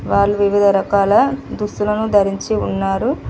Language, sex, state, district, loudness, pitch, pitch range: Telugu, female, Telangana, Mahabubabad, -16 LUFS, 200 Hz, 195-210 Hz